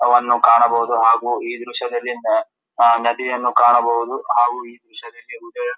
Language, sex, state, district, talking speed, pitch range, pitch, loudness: Kannada, male, Karnataka, Dharwad, 105 wpm, 120-125 Hz, 120 Hz, -17 LUFS